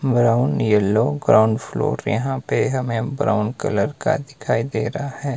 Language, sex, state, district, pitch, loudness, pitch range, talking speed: Hindi, male, Himachal Pradesh, Shimla, 120 Hz, -20 LUFS, 110-140 Hz, 155 wpm